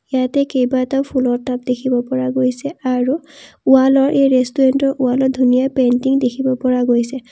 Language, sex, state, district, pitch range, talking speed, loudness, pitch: Assamese, female, Assam, Kamrup Metropolitan, 250-270 Hz, 140 wpm, -16 LUFS, 260 Hz